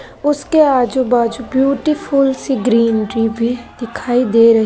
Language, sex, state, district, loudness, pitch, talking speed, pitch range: Hindi, female, Madhya Pradesh, Dhar, -15 LUFS, 245 Hz, 140 wpm, 230-275 Hz